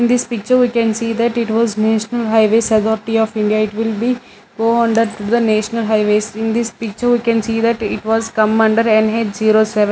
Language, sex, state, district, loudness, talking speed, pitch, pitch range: English, female, Punjab, Fazilka, -15 LUFS, 225 wpm, 225 Hz, 215-230 Hz